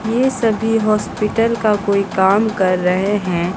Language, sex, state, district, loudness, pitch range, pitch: Hindi, female, Bihar, Katihar, -16 LUFS, 190-225 Hz, 210 Hz